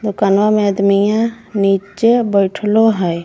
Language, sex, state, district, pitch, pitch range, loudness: Magahi, female, Jharkhand, Palamu, 205 Hz, 195-220 Hz, -14 LUFS